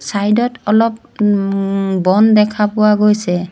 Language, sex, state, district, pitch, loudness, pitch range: Assamese, female, Assam, Sonitpur, 210 Hz, -14 LUFS, 195-215 Hz